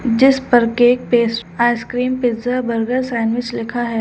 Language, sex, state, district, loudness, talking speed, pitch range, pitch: Hindi, female, Uttar Pradesh, Lucknow, -17 LUFS, 150 wpm, 230-250 Hz, 240 Hz